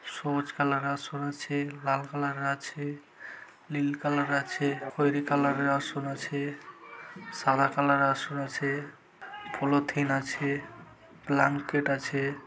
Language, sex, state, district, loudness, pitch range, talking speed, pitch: Bengali, male, West Bengal, Malda, -29 LUFS, 140-145 Hz, 130 wpm, 140 Hz